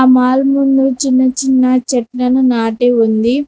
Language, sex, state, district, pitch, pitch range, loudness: Telugu, female, Telangana, Mahabubabad, 255 Hz, 245-265 Hz, -12 LUFS